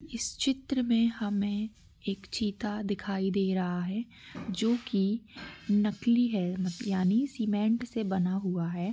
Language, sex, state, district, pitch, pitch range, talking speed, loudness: Hindi, female, Jharkhand, Jamtara, 210 Hz, 195-230 Hz, 135 wpm, -30 LUFS